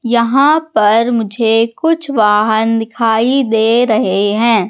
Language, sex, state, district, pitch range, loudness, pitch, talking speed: Hindi, female, Madhya Pradesh, Katni, 220-245 Hz, -12 LUFS, 225 Hz, 115 wpm